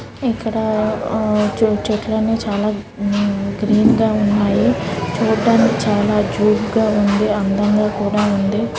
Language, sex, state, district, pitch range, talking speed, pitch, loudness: Telugu, female, Andhra Pradesh, Srikakulam, 205-220 Hz, 110 wpm, 210 Hz, -17 LUFS